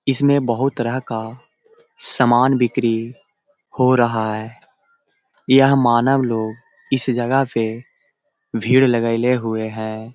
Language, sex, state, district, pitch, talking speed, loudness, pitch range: Hindi, male, Bihar, Jahanabad, 125 Hz, 125 wpm, -18 LUFS, 115-135 Hz